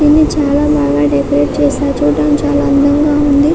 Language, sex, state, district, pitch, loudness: Telugu, female, Telangana, Karimnagar, 280 Hz, -12 LUFS